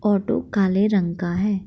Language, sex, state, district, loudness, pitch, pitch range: Hindi, female, Bihar, Begusarai, -21 LUFS, 195 Hz, 185-205 Hz